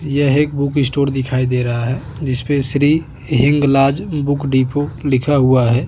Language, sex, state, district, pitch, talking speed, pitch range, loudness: Hindi, male, Chhattisgarh, Bastar, 140 Hz, 165 wpm, 130-145 Hz, -16 LUFS